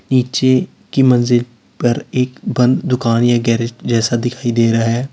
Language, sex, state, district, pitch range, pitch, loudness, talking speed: Hindi, male, Uttar Pradesh, Lalitpur, 115-130 Hz, 120 Hz, -15 LUFS, 165 wpm